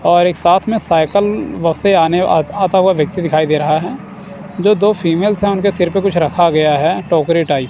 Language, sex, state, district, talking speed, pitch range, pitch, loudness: Hindi, male, Punjab, Kapurthala, 225 wpm, 160-195 Hz, 175 Hz, -13 LUFS